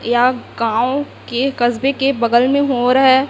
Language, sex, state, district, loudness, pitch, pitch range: Hindi, female, Chhattisgarh, Raipur, -16 LUFS, 255 Hz, 240-270 Hz